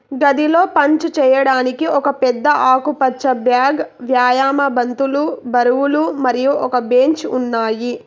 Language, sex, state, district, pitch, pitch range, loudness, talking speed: Telugu, female, Telangana, Hyderabad, 265 Hz, 250-285 Hz, -15 LUFS, 105 wpm